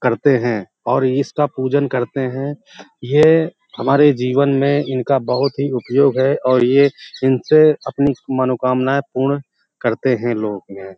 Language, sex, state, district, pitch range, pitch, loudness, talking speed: Hindi, male, Uttar Pradesh, Hamirpur, 125-140 Hz, 135 Hz, -17 LUFS, 140 wpm